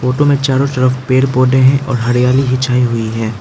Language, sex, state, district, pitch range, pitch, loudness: Hindi, male, Arunachal Pradesh, Lower Dibang Valley, 125-135 Hz, 130 Hz, -13 LUFS